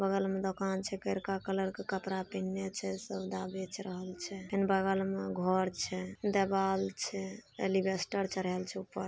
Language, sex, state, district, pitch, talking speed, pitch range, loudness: Maithili, female, Bihar, Samastipur, 190 Hz, 165 wpm, 185-195 Hz, -35 LUFS